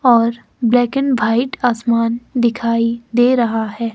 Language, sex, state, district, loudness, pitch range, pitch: Hindi, female, Himachal Pradesh, Shimla, -16 LUFS, 230-245 Hz, 235 Hz